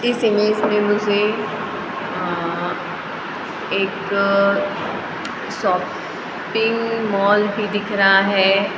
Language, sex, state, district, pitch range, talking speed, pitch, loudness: Hindi, female, Maharashtra, Gondia, 200-215 Hz, 95 wpm, 205 Hz, -19 LUFS